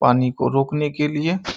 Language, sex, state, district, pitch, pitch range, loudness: Maithili, male, Bihar, Saharsa, 145 Hz, 130-150 Hz, -21 LUFS